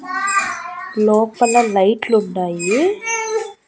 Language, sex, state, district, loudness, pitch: Telugu, female, Andhra Pradesh, Annamaya, -17 LUFS, 260 Hz